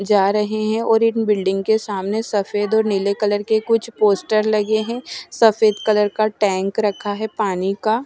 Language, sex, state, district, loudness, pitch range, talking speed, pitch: Hindi, female, Maharashtra, Washim, -19 LUFS, 205-220 Hz, 185 wpm, 215 Hz